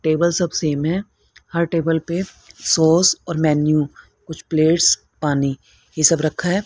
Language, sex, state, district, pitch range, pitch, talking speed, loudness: Hindi, female, Haryana, Rohtak, 155-170 Hz, 165 Hz, 155 wpm, -18 LUFS